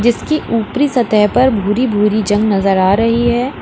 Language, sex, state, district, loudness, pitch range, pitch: Hindi, female, Uttar Pradesh, Lalitpur, -13 LUFS, 210-245 Hz, 225 Hz